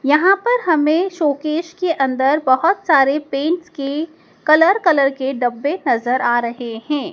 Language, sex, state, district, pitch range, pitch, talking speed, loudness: Hindi, female, Madhya Pradesh, Dhar, 270-335 Hz, 300 Hz, 150 wpm, -17 LUFS